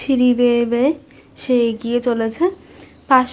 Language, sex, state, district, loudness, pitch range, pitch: Bengali, female, West Bengal, North 24 Parganas, -17 LUFS, 240-270 Hz, 250 Hz